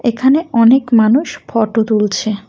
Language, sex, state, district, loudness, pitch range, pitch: Bengali, female, West Bengal, Alipurduar, -13 LUFS, 215-265 Hz, 230 Hz